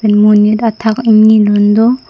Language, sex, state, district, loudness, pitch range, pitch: Karbi, female, Assam, Karbi Anglong, -9 LUFS, 210-225 Hz, 215 Hz